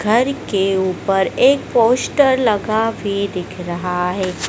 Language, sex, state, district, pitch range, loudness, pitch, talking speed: Hindi, female, Madhya Pradesh, Dhar, 185-235 Hz, -17 LUFS, 200 Hz, 135 wpm